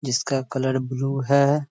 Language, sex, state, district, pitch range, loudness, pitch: Hindi, male, Bihar, Muzaffarpur, 130-140 Hz, -23 LUFS, 135 Hz